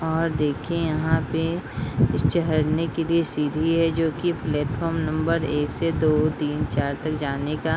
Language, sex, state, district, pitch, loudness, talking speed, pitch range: Hindi, female, Bihar, Madhepura, 155 Hz, -24 LUFS, 170 wpm, 150-165 Hz